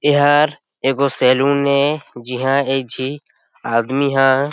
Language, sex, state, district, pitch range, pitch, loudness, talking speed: Chhattisgarhi, male, Chhattisgarh, Sarguja, 130-140 Hz, 135 Hz, -17 LUFS, 145 wpm